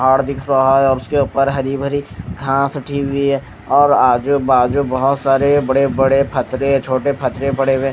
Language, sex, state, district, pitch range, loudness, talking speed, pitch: Hindi, male, Maharashtra, Mumbai Suburban, 130-140 Hz, -16 LUFS, 195 wpm, 135 Hz